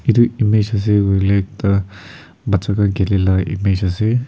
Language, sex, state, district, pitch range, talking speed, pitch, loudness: Nagamese, male, Nagaland, Kohima, 95-105 Hz, 180 wpm, 100 Hz, -16 LUFS